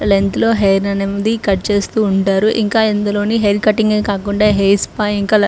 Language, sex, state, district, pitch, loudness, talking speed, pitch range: Telugu, female, Andhra Pradesh, Srikakulam, 205 Hz, -15 LUFS, 185 wpm, 200-215 Hz